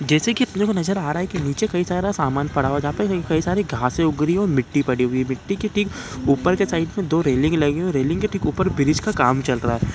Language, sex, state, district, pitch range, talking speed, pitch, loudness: Hindi, male, Bihar, Saran, 140-190 Hz, 315 wpm, 160 Hz, -21 LUFS